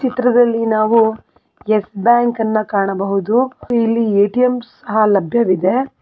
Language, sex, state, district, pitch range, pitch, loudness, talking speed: Kannada, female, Karnataka, Belgaum, 210-245 Hz, 225 Hz, -15 LUFS, 90 wpm